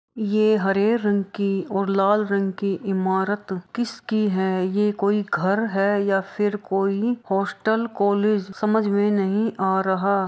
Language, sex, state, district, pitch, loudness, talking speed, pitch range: Hindi, female, Bihar, Saharsa, 200 Hz, -22 LUFS, 160 wpm, 195-210 Hz